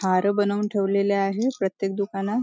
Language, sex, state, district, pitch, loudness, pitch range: Marathi, female, Maharashtra, Nagpur, 200 Hz, -24 LUFS, 195-205 Hz